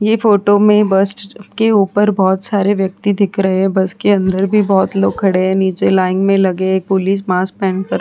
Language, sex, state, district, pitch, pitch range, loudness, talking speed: Hindi, female, Chhattisgarh, Korba, 195 Hz, 190-205 Hz, -14 LUFS, 215 wpm